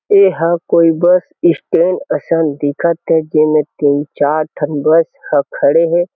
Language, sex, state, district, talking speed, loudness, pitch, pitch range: Chhattisgarhi, male, Chhattisgarh, Kabirdham, 145 wpm, -13 LUFS, 165 Hz, 150-170 Hz